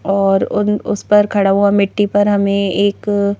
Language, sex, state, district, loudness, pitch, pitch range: Hindi, female, Madhya Pradesh, Bhopal, -14 LUFS, 200 Hz, 200-205 Hz